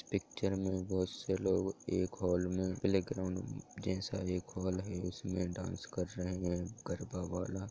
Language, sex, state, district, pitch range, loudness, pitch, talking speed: Hindi, male, Jharkhand, Jamtara, 90-95 Hz, -38 LUFS, 95 Hz, 155 wpm